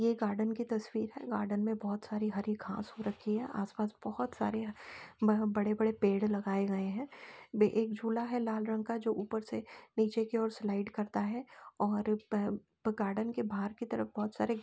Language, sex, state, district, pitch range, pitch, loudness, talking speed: Hindi, female, Uttar Pradesh, Etah, 210-225 Hz, 215 Hz, -35 LUFS, 200 wpm